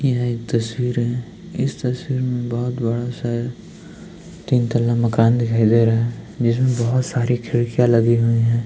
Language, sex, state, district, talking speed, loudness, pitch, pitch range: Hindi, male, Uttarakhand, Tehri Garhwal, 175 wpm, -19 LUFS, 120 Hz, 115-125 Hz